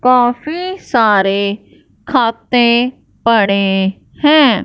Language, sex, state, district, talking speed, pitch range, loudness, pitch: Hindi, male, Punjab, Fazilka, 65 wpm, 200-265 Hz, -13 LUFS, 235 Hz